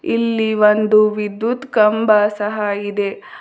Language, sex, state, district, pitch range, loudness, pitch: Kannada, female, Karnataka, Bidar, 210-220 Hz, -16 LUFS, 215 Hz